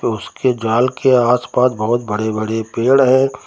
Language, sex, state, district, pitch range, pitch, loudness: Hindi, male, Uttar Pradesh, Lucknow, 110-130 Hz, 125 Hz, -16 LUFS